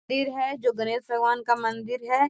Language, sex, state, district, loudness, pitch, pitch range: Magahi, female, Bihar, Gaya, -26 LUFS, 245 Hz, 235-265 Hz